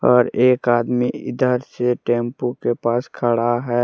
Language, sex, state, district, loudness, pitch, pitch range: Hindi, male, Jharkhand, Deoghar, -19 LUFS, 120 Hz, 120-125 Hz